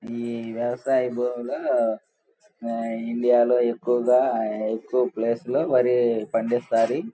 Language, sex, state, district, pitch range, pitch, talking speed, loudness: Telugu, male, Andhra Pradesh, Guntur, 115-125 Hz, 120 Hz, 85 wpm, -23 LUFS